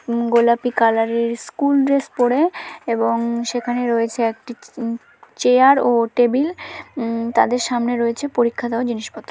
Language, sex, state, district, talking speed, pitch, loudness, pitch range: Bengali, female, West Bengal, Dakshin Dinajpur, 135 wpm, 240 Hz, -18 LUFS, 235-255 Hz